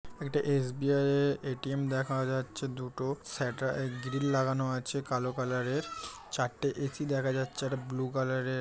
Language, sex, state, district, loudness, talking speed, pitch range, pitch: Bengali, male, West Bengal, Jhargram, -33 LUFS, 155 wpm, 130-140 Hz, 135 Hz